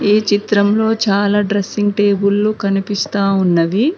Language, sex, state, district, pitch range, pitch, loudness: Telugu, female, Telangana, Mahabubabad, 200-210 Hz, 205 Hz, -15 LUFS